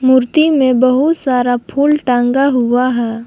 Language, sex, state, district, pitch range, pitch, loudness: Hindi, female, Jharkhand, Palamu, 245-280 Hz, 255 Hz, -13 LUFS